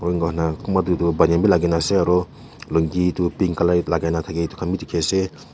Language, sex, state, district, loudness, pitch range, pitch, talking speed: Nagamese, male, Nagaland, Kohima, -20 LUFS, 85-90 Hz, 85 Hz, 215 wpm